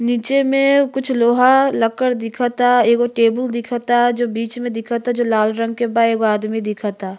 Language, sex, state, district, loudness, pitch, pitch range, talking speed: Bhojpuri, female, Uttar Pradesh, Gorakhpur, -17 LUFS, 240 Hz, 230-245 Hz, 175 wpm